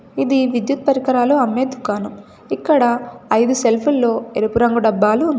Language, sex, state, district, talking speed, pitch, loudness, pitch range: Telugu, female, Telangana, Komaram Bheem, 145 wpm, 245 Hz, -17 LUFS, 230-270 Hz